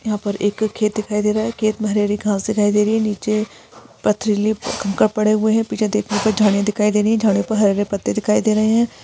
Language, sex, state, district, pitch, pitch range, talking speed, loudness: Hindi, female, Rajasthan, Churu, 210 Hz, 205-215 Hz, 265 wpm, -18 LUFS